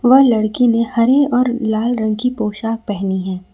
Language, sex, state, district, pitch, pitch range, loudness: Hindi, female, Jharkhand, Ranchi, 225 Hz, 215-250 Hz, -16 LUFS